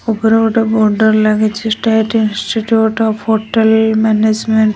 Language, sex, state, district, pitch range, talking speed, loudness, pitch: Odia, male, Odisha, Nuapada, 215-225 Hz, 140 wpm, -13 LUFS, 220 Hz